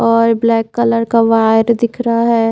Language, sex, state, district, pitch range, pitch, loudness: Hindi, female, Haryana, Charkhi Dadri, 225-235 Hz, 230 Hz, -13 LUFS